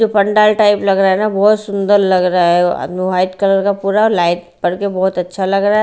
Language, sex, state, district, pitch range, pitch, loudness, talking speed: Hindi, female, Bihar, Patna, 185-205 Hz, 195 Hz, -14 LUFS, 255 wpm